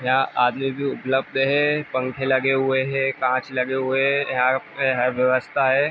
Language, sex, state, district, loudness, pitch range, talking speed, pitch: Hindi, male, Uttar Pradesh, Ghazipur, -21 LUFS, 130-135 Hz, 170 wpm, 130 Hz